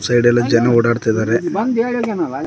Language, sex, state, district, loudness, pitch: Kannada, male, Karnataka, Koppal, -16 LUFS, 120 Hz